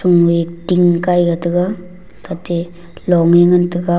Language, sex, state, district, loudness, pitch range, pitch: Wancho, male, Arunachal Pradesh, Longding, -14 LUFS, 170-180 Hz, 175 Hz